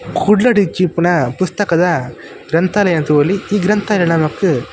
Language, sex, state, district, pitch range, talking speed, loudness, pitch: Tulu, male, Karnataka, Dakshina Kannada, 165-205 Hz, 100 wpm, -14 LUFS, 175 Hz